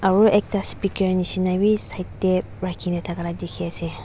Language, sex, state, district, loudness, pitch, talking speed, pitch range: Nagamese, female, Nagaland, Dimapur, -20 LUFS, 185 Hz, 165 wpm, 175-195 Hz